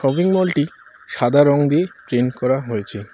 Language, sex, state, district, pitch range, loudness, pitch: Bengali, male, West Bengal, Cooch Behar, 120-165 Hz, -18 LUFS, 140 Hz